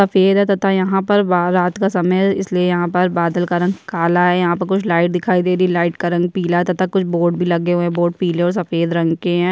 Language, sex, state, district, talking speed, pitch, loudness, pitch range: Hindi, female, Chhattisgarh, Jashpur, 290 wpm, 180 Hz, -16 LUFS, 175-185 Hz